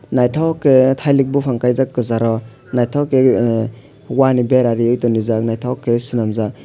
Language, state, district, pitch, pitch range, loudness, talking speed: Kokborok, Tripura, West Tripura, 125 Hz, 115-130 Hz, -16 LUFS, 145 wpm